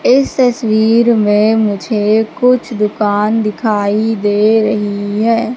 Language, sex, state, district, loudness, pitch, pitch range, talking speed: Hindi, female, Madhya Pradesh, Katni, -13 LUFS, 220 Hz, 210-230 Hz, 110 wpm